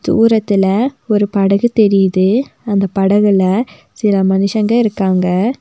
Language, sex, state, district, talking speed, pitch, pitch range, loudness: Tamil, female, Tamil Nadu, Nilgiris, 95 wpm, 205 Hz, 195-225 Hz, -13 LUFS